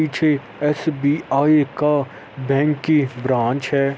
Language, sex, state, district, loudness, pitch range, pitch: Hindi, male, Uttar Pradesh, Etah, -19 LUFS, 135-150 Hz, 145 Hz